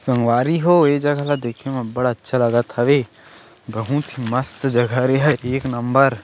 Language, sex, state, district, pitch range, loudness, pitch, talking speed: Chhattisgarhi, male, Chhattisgarh, Sarguja, 120-140 Hz, -19 LUFS, 130 Hz, 175 wpm